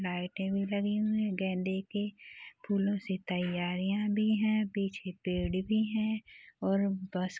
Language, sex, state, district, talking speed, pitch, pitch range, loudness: Hindi, female, Chhattisgarh, Rajnandgaon, 155 wpm, 195 Hz, 185-210 Hz, -33 LUFS